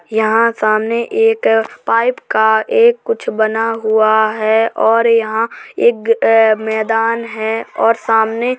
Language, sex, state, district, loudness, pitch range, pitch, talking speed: Hindi, female, Uttar Pradesh, Jalaun, -14 LUFS, 220-235 Hz, 225 Hz, 125 wpm